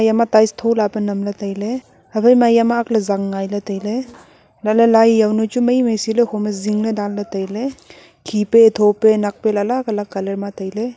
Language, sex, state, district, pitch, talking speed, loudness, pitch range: Wancho, female, Arunachal Pradesh, Longding, 215 Hz, 170 wpm, -17 LUFS, 205-230 Hz